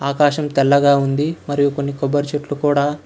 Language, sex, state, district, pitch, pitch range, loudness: Telugu, male, Karnataka, Bangalore, 145 Hz, 140-145 Hz, -17 LUFS